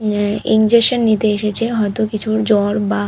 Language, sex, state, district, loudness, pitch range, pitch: Bengali, female, West Bengal, Purulia, -15 LUFS, 210-220 Hz, 215 Hz